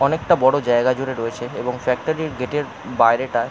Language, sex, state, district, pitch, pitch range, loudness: Bengali, male, West Bengal, Jalpaiguri, 130 Hz, 120-145 Hz, -20 LUFS